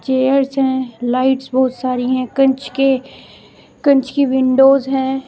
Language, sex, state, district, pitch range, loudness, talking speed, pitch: Hindi, female, Uttar Pradesh, Shamli, 255-270 Hz, -15 LUFS, 135 wpm, 265 Hz